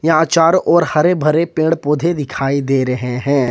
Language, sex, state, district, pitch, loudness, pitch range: Hindi, male, Jharkhand, Ranchi, 155 Hz, -15 LUFS, 135-165 Hz